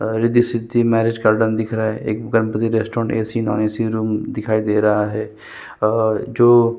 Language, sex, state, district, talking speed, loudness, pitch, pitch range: Hindi, male, Chhattisgarh, Sukma, 220 wpm, -18 LUFS, 110 Hz, 110-115 Hz